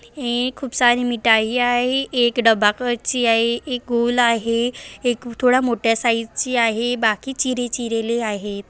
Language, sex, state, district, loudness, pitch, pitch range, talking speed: Marathi, female, Maharashtra, Aurangabad, -19 LUFS, 240 Hz, 230-245 Hz, 145 wpm